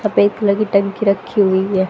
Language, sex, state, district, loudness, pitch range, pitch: Hindi, female, Haryana, Jhajjar, -16 LUFS, 195-210 Hz, 200 Hz